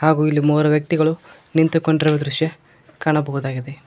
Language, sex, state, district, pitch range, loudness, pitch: Kannada, male, Karnataka, Koppal, 150-160 Hz, -19 LUFS, 155 Hz